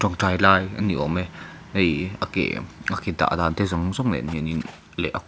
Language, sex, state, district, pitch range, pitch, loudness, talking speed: Mizo, male, Mizoram, Aizawl, 80-100 Hz, 95 Hz, -23 LUFS, 240 wpm